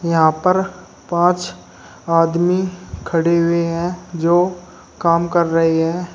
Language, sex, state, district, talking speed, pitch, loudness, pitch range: Hindi, male, Uttar Pradesh, Shamli, 115 wpm, 170 Hz, -17 LUFS, 165-175 Hz